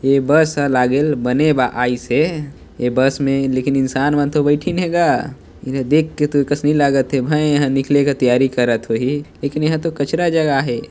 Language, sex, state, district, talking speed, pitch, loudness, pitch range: Chhattisgarhi, male, Chhattisgarh, Sarguja, 210 wpm, 140 Hz, -17 LUFS, 130-150 Hz